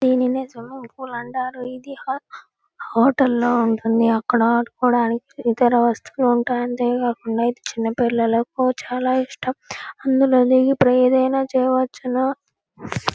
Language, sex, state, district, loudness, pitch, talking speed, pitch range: Telugu, female, Andhra Pradesh, Guntur, -19 LUFS, 250 Hz, 110 wpm, 235-260 Hz